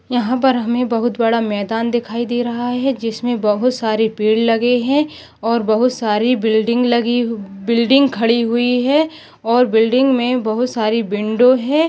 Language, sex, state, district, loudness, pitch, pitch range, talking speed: Hindi, female, Maharashtra, Dhule, -16 LUFS, 235 Hz, 225-250 Hz, 165 wpm